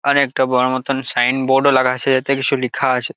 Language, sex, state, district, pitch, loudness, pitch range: Bengali, male, West Bengal, Jalpaiguri, 130 Hz, -16 LUFS, 130-140 Hz